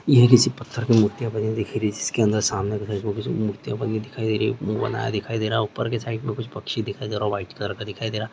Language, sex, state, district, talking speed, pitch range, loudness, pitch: Hindi, male, Chhattisgarh, Rajnandgaon, 305 wpm, 105-115 Hz, -23 LUFS, 110 Hz